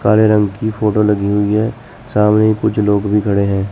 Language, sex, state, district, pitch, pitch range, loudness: Hindi, male, Chandigarh, Chandigarh, 105 Hz, 100-110 Hz, -14 LUFS